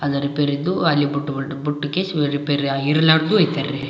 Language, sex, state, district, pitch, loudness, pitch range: Kannada, male, Karnataka, Raichur, 145 Hz, -19 LUFS, 140-155 Hz